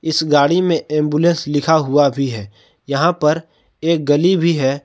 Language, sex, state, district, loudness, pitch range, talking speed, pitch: Hindi, male, Jharkhand, Palamu, -16 LUFS, 145-165 Hz, 175 wpm, 150 Hz